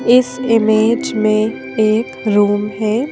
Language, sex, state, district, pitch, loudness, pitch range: Hindi, female, Madhya Pradesh, Bhopal, 220 Hz, -15 LUFS, 215-240 Hz